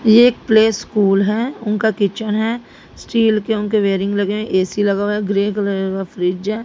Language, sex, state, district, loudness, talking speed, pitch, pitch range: Hindi, female, Haryana, Jhajjar, -17 LUFS, 200 wpm, 210 Hz, 200-220 Hz